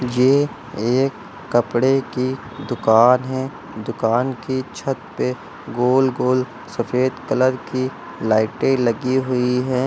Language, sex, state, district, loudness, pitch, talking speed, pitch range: Hindi, male, Uttar Pradesh, Lucknow, -20 LUFS, 125 Hz, 115 wpm, 120-130 Hz